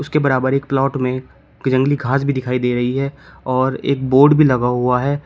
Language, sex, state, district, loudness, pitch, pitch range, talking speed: Hindi, male, Uttar Pradesh, Shamli, -17 LUFS, 130 Hz, 125-140 Hz, 230 wpm